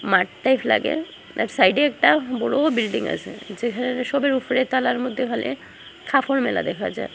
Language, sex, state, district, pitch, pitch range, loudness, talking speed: Bengali, female, Assam, Hailakandi, 260 Hz, 250-280 Hz, -21 LUFS, 140 wpm